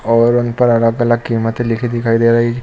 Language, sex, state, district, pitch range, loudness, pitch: Hindi, male, Jharkhand, Sahebganj, 115-120 Hz, -14 LUFS, 120 Hz